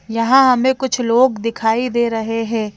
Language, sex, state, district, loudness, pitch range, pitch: Hindi, female, Madhya Pradesh, Bhopal, -16 LUFS, 225-255 Hz, 230 Hz